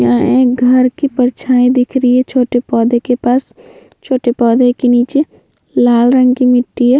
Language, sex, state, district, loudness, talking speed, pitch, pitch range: Hindi, female, Bihar, Vaishali, -12 LUFS, 180 wpm, 250 Hz, 245-260 Hz